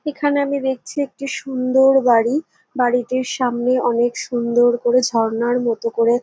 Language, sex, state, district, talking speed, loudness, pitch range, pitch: Bengali, female, West Bengal, North 24 Parganas, 135 wpm, -18 LUFS, 240-270 Hz, 250 Hz